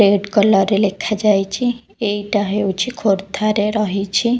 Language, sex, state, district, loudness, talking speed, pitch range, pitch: Odia, female, Odisha, Khordha, -17 LUFS, 125 wpm, 200-215 Hz, 205 Hz